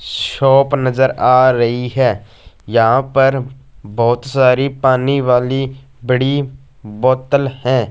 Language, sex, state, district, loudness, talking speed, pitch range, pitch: Hindi, male, Punjab, Fazilka, -14 LUFS, 105 wpm, 120-135 Hz, 130 Hz